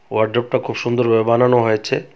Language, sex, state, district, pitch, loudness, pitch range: Bengali, male, Tripura, West Tripura, 120 Hz, -17 LUFS, 110-120 Hz